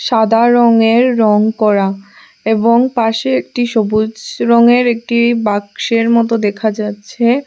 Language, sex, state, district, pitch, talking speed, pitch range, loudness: Bengali, female, Assam, Hailakandi, 230 Hz, 110 wpm, 215-235 Hz, -13 LUFS